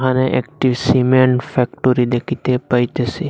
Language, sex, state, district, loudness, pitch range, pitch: Bengali, male, Assam, Hailakandi, -16 LUFS, 125-130 Hz, 125 Hz